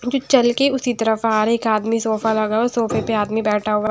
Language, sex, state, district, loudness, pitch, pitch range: Hindi, female, Punjab, Kapurthala, -18 LUFS, 225 Hz, 215-240 Hz